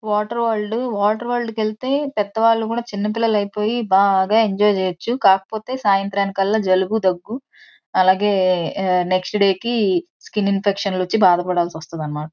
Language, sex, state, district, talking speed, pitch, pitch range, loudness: Telugu, female, Andhra Pradesh, Guntur, 130 wpm, 205 Hz, 190-225 Hz, -19 LUFS